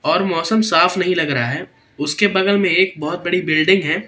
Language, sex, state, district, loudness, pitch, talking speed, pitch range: Hindi, male, Madhya Pradesh, Katni, -17 LUFS, 175 Hz, 220 wpm, 150-190 Hz